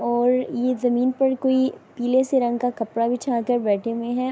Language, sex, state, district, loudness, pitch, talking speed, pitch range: Urdu, female, Andhra Pradesh, Anantapur, -22 LUFS, 245 Hz, 195 wpm, 240-255 Hz